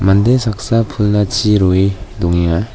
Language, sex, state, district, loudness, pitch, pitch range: Garo, male, Meghalaya, West Garo Hills, -14 LUFS, 105 Hz, 95-110 Hz